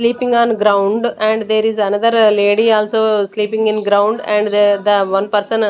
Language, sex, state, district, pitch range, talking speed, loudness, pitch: English, female, Chandigarh, Chandigarh, 205-220 Hz, 190 wpm, -14 LUFS, 215 Hz